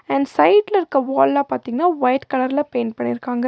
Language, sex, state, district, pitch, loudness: Tamil, female, Tamil Nadu, Nilgiris, 250 Hz, -18 LUFS